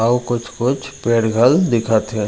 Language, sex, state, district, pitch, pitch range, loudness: Chhattisgarhi, male, Chhattisgarh, Raigarh, 115 Hz, 110-125 Hz, -17 LUFS